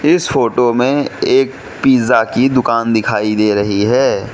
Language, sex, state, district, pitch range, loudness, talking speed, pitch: Hindi, male, Manipur, Imphal West, 105-140 Hz, -13 LUFS, 150 wpm, 120 Hz